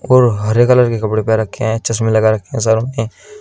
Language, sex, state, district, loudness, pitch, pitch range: Hindi, male, Uttar Pradesh, Shamli, -14 LUFS, 115 Hz, 110-120 Hz